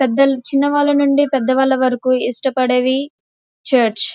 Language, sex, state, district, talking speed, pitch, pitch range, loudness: Telugu, female, Andhra Pradesh, Krishna, 100 wpm, 265 Hz, 255-275 Hz, -15 LUFS